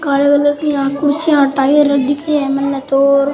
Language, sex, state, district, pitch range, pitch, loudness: Rajasthani, male, Rajasthan, Churu, 275-290 Hz, 280 Hz, -13 LUFS